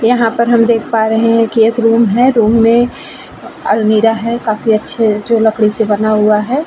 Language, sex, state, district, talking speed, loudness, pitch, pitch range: Hindi, female, Uttar Pradesh, Varanasi, 205 wpm, -11 LUFS, 225 Hz, 220-235 Hz